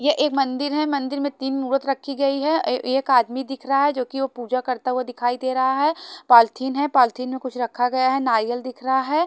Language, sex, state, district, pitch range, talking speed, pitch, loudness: Hindi, female, Haryana, Charkhi Dadri, 255-280 Hz, 245 wpm, 265 Hz, -21 LUFS